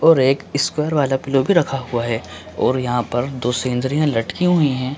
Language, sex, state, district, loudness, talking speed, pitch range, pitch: Hindi, male, Chhattisgarh, Bilaspur, -19 LUFS, 205 wpm, 120-150 Hz, 130 Hz